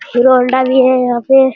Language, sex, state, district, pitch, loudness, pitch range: Hindi, male, Bihar, Jamui, 255 Hz, -11 LUFS, 250-260 Hz